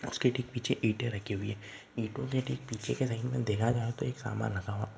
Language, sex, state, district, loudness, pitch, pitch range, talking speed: Marwari, male, Rajasthan, Nagaur, -34 LUFS, 115 Hz, 110-125 Hz, 255 wpm